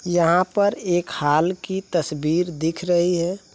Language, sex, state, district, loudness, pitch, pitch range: Hindi, male, Uttar Pradesh, Varanasi, -21 LUFS, 175 Hz, 165-185 Hz